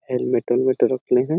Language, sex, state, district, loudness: Awadhi, male, Chhattisgarh, Balrampur, -20 LUFS